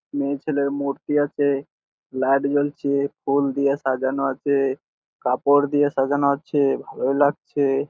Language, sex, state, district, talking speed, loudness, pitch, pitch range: Bengali, male, West Bengal, Jhargram, 120 wpm, -22 LUFS, 140 Hz, 135-145 Hz